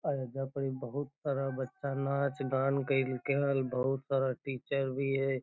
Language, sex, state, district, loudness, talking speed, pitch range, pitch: Magahi, male, Bihar, Lakhisarai, -33 LUFS, 165 wpm, 130-140 Hz, 135 Hz